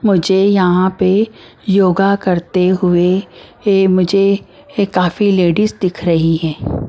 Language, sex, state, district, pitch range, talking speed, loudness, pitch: Hindi, female, Maharashtra, Mumbai Suburban, 180-200 Hz, 105 wpm, -14 LUFS, 190 Hz